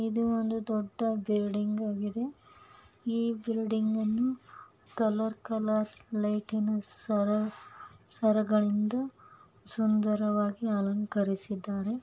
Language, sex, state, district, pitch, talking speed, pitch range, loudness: Kannada, female, Karnataka, Belgaum, 215 Hz, 75 wpm, 210-230 Hz, -30 LUFS